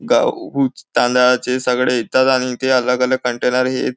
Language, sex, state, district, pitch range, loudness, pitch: Marathi, male, Maharashtra, Nagpur, 125-130 Hz, -16 LUFS, 125 Hz